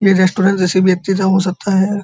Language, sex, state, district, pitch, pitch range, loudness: Hindi, male, Uttar Pradesh, Muzaffarnagar, 190 Hz, 185-195 Hz, -14 LUFS